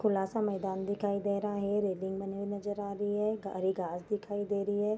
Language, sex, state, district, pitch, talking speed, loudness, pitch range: Hindi, female, Bihar, Vaishali, 200 Hz, 255 wpm, -34 LUFS, 195-205 Hz